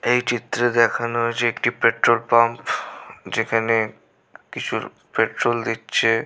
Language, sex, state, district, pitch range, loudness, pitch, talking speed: Bengali, male, West Bengal, Malda, 115-120 Hz, -21 LUFS, 115 Hz, 105 wpm